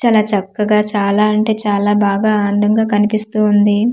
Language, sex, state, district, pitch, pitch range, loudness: Telugu, female, Andhra Pradesh, Manyam, 210 Hz, 205-215 Hz, -14 LUFS